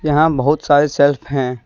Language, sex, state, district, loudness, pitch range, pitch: Hindi, male, Jharkhand, Deoghar, -15 LUFS, 135-150 Hz, 145 Hz